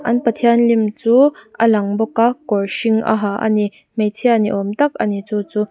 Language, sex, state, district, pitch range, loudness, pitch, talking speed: Mizo, female, Mizoram, Aizawl, 210-235 Hz, -16 LUFS, 220 Hz, 230 wpm